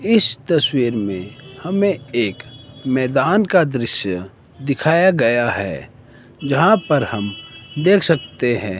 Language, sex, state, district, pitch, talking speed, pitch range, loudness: Hindi, male, Himachal Pradesh, Shimla, 130 Hz, 115 wpm, 115-165 Hz, -17 LUFS